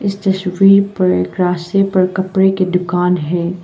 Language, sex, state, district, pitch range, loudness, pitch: Hindi, female, Arunachal Pradesh, Papum Pare, 180-190 Hz, -14 LUFS, 185 Hz